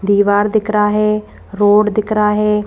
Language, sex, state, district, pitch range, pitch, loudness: Hindi, female, Madhya Pradesh, Bhopal, 205-210 Hz, 210 Hz, -14 LUFS